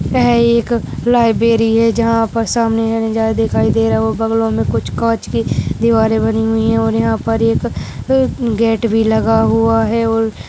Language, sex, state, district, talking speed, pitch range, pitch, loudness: Hindi, male, Bihar, Darbhanga, 195 wpm, 220-230 Hz, 225 Hz, -14 LUFS